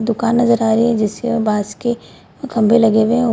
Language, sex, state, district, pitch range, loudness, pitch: Hindi, female, Bihar, Purnia, 220-235 Hz, -15 LUFS, 230 Hz